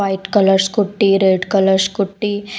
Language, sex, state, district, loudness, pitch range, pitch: Odia, female, Odisha, Khordha, -15 LUFS, 190-205 Hz, 195 Hz